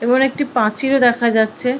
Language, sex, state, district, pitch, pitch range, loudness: Bengali, female, West Bengal, Purulia, 250 Hz, 230-265 Hz, -16 LUFS